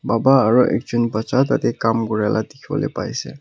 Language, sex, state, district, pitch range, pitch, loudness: Nagamese, male, Nagaland, Kohima, 110-125 Hz, 115 Hz, -19 LUFS